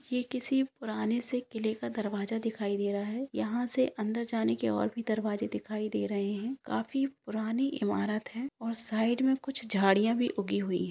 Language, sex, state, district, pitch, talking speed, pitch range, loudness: Hindi, female, Andhra Pradesh, Anantapur, 225 Hz, 210 wpm, 210-250 Hz, -32 LUFS